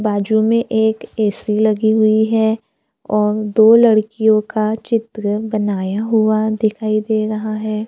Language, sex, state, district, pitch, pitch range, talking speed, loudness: Hindi, female, Maharashtra, Gondia, 215 Hz, 215-220 Hz, 135 wpm, -16 LUFS